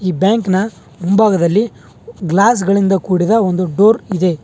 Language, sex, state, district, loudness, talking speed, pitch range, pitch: Kannada, male, Karnataka, Bangalore, -14 LUFS, 120 wpm, 180-215 Hz, 195 Hz